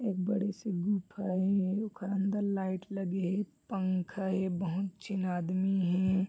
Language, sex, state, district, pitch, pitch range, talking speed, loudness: Chhattisgarhi, male, Chhattisgarh, Bilaspur, 190 Hz, 185-200 Hz, 155 wpm, -33 LUFS